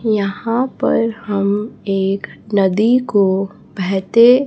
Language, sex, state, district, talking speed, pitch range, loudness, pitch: Hindi, female, Chhattisgarh, Raipur, 95 wpm, 195-230 Hz, -17 LUFS, 205 Hz